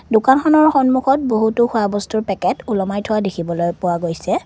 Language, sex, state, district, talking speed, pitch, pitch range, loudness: Assamese, female, Assam, Kamrup Metropolitan, 150 wpm, 215 Hz, 190-255 Hz, -17 LUFS